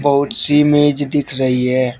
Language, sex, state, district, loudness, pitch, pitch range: Hindi, male, Uttar Pradesh, Shamli, -15 LUFS, 140 Hz, 130-145 Hz